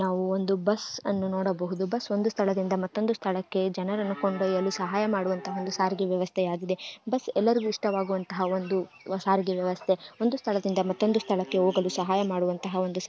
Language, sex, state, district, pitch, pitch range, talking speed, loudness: Kannada, female, Karnataka, Gulbarga, 190 Hz, 185-205 Hz, 145 wpm, -28 LUFS